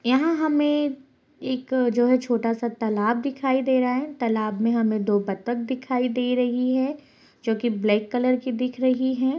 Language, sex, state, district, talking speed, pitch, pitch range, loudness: Hindi, female, Bihar, Purnia, 185 wpm, 250 Hz, 230-260 Hz, -23 LUFS